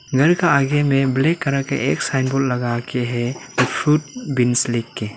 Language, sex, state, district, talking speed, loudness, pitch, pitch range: Hindi, male, Arunachal Pradesh, Lower Dibang Valley, 195 wpm, -19 LUFS, 135 Hz, 125-140 Hz